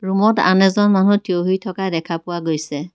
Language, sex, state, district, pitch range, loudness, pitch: Assamese, female, Assam, Kamrup Metropolitan, 170-195 Hz, -17 LUFS, 190 Hz